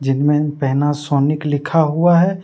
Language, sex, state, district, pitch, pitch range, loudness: Hindi, male, Jharkhand, Deoghar, 150 Hz, 140-160 Hz, -16 LUFS